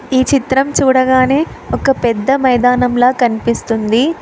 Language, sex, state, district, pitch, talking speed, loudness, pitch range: Telugu, female, Telangana, Hyderabad, 255 Hz, 100 wpm, -13 LUFS, 240-270 Hz